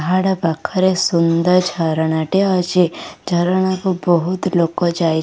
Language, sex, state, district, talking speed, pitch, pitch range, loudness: Odia, female, Odisha, Khordha, 140 wpm, 175 Hz, 165-185 Hz, -17 LUFS